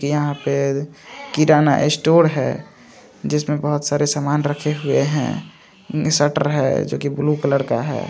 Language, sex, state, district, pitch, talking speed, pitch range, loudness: Hindi, male, Andhra Pradesh, Visakhapatnam, 145 Hz, 155 wpm, 140-150 Hz, -19 LUFS